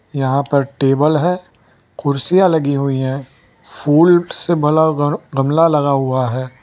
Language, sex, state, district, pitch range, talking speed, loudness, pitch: Hindi, male, Gujarat, Valsad, 135-160 Hz, 135 wpm, -15 LUFS, 140 Hz